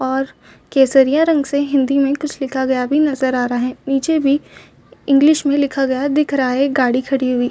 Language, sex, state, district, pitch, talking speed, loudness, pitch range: Hindi, female, Chhattisgarh, Raigarh, 275 Hz, 225 wpm, -16 LUFS, 260-285 Hz